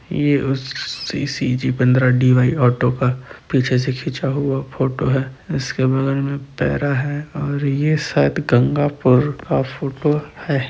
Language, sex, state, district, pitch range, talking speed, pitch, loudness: Chhattisgarhi, male, Chhattisgarh, Sarguja, 130-145 Hz, 145 wpm, 135 Hz, -19 LUFS